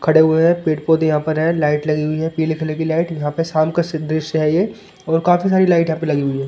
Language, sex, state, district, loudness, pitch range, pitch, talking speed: Hindi, male, Delhi, New Delhi, -17 LUFS, 155-165 Hz, 160 Hz, 295 wpm